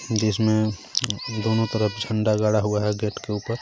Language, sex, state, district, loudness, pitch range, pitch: Hindi, male, Jharkhand, Garhwa, -23 LUFS, 105-110 Hz, 110 Hz